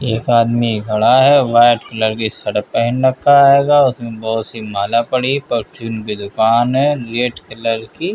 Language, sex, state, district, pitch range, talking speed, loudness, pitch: Hindi, male, Uttar Pradesh, Hamirpur, 110-130 Hz, 185 wpm, -15 LUFS, 115 Hz